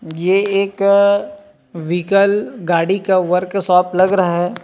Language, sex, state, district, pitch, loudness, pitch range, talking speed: Hindi, male, Chhattisgarh, Rajnandgaon, 190 Hz, -15 LUFS, 175-200 Hz, 115 wpm